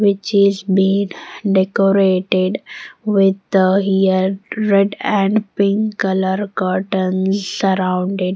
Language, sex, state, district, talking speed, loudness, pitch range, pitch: English, female, Punjab, Pathankot, 85 wpm, -17 LUFS, 190-200 Hz, 195 Hz